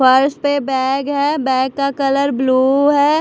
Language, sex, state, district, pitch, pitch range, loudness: Hindi, female, Chhattisgarh, Raipur, 275 Hz, 265-285 Hz, -15 LUFS